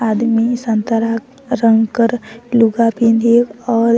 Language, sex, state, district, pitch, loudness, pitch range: Sadri, female, Chhattisgarh, Jashpur, 230 Hz, -15 LUFS, 225-235 Hz